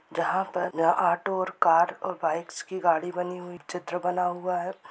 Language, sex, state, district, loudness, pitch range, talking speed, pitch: Hindi, female, Bihar, Gopalganj, -27 LUFS, 170-180 Hz, 195 wpm, 180 Hz